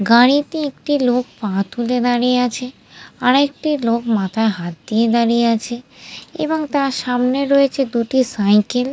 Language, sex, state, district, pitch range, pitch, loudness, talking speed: Bengali, female, West Bengal, Dakshin Dinajpur, 230-270 Hz, 245 Hz, -17 LUFS, 150 wpm